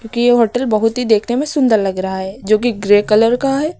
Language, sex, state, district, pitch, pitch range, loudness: Hindi, female, Uttar Pradesh, Lucknow, 225 Hz, 210-245 Hz, -15 LUFS